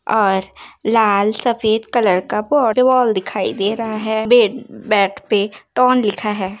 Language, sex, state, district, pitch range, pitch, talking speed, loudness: Hindi, female, Uttar Pradesh, Jalaun, 205-240 Hz, 220 Hz, 125 wpm, -16 LUFS